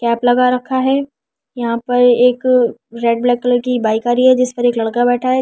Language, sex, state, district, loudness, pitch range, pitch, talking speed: Hindi, female, Delhi, New Delhi, -14 LUFS, 240-250 Hz, 245 Hz, 230 wpm